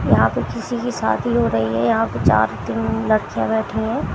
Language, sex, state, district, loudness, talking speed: Hindi, female, Haryana, Jhajjar, -19 LUFS, 215 wpm